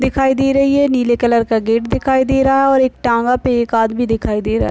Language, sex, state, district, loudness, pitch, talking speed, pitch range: Hindi, male, Bihar, Madhepura, -15 LUFS, 250 Hz, 280 wpm, 230-270 Hz